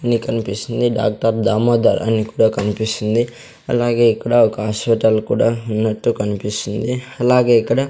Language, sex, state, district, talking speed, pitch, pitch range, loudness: Telugu, male, Andhra Pradesh, Sri Satya Sai, 120 wpm, 115 Hz, 110-120 Hz, -17 LUFS